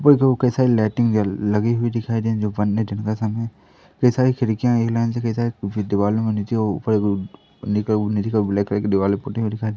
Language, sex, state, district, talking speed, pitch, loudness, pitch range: Hindi, male, Madhya Pradesh, Katni, 250 wpm, 110 Hz, -20 LUFS, 105-115 Hz